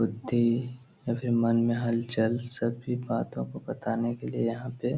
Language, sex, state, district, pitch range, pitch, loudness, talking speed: Hindi, male, Bihar, Jahanabad, 115-125 Hz, 120 Hz, -29 LUFS, 180 wpm